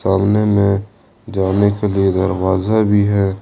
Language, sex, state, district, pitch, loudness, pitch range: Hindi, male, Jharkhand, Ranchi, 100 Hz, -15 LUFS, 95-105 Hz